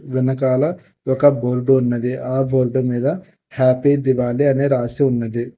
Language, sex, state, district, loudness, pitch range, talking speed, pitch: Telugu, male, Telangana, Hyderabad, -18 LUFS, 125-140 Hz, 130 wpm, 130 Hz